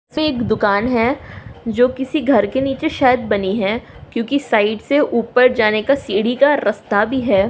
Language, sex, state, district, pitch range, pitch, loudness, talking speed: Hindi, female, Uttar Pradesh, Jyotiba Phule Nagar, 215-270 Hz, 240 Hz, -17 LUFS, 160 wpm